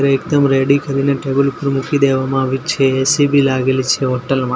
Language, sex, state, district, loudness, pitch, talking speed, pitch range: Gujarati, male, Gujarat, Gandhinagar, -15 LUFS, 135 Hz, 195 wpm, 130-140 Hz